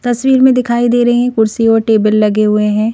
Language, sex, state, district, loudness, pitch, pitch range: Hindi, female, Madhya Pradesh, Bhopal, -11 LUFS, 225 Hz, 215-245 Hz